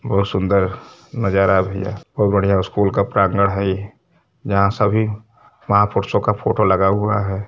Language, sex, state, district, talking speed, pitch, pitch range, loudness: Hindi, male, Uttar Pradesh, Varanasi, 160 wpm, 100 Hz, 95-105 Hz, -18 LUFS